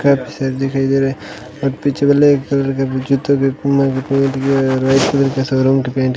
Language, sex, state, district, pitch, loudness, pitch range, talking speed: Hindi, male, Rajasthan, Bikaner, 135 Hz, -15 LUFS, 135-140 Hz, 125 wpm